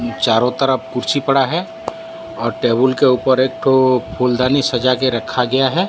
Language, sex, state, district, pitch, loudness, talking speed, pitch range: Hindi, male, Odisha, Sambalpur, 130 Hz, -16 LUFS, 175 wpm, 125-135 Hz